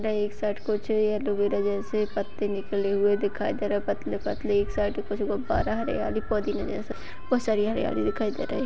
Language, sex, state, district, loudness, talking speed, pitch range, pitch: Hindi, female, Chhattisgarh, Bastar, -27 LUFS, 195 wpm, 205-215 Hz, 210 Hz